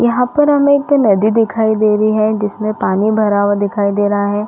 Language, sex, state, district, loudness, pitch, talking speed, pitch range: Hindi, female, Chhattisgarh, Rajnandgaon, -13 LUFS, 215 Hz, 225 wpm, 205-230 Hz